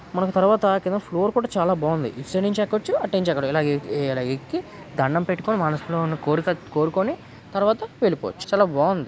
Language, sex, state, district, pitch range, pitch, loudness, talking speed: Telugu, male, Andhra Pradesh, Guntur, 150-200 Hz, 180 Hz, -23 LUFS, 140 wpm